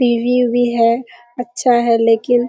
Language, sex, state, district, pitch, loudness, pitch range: Hindi, female, Bihar, Kishanganj, 240 Hz, -15 LUFS, 235-245 Hz